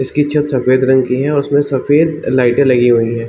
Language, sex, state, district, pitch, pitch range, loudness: Hindi, male, Bihar, Saran, 130 Hz, 125-145 Hz, -13 LUFS